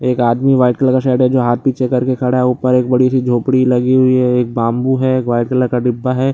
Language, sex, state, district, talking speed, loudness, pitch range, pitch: Hindi, male, Bihar, Lakhisarai, 285 wpm, -14 LUFS, 125-130 Hz, 125 Hz